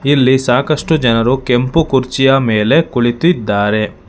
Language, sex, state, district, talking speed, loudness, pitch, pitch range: Kannada, male, Karnataka, Bangalore, 105 wpm, -13 LUFS, 130 Hz, 120-140 Hz